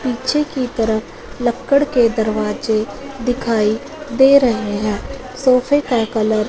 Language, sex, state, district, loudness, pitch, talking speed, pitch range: Hindi, female, Punjab, Fazilka, -17 LUFS, 245 Hz, 130 wpm, 220-265 Hz